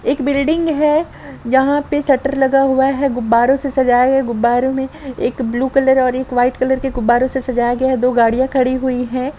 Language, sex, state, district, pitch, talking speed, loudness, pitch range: Hindi, female, Jharkhand, Sahebganj, 260 Hz, 205 wpm, -15 LUFS, 250-270 Hz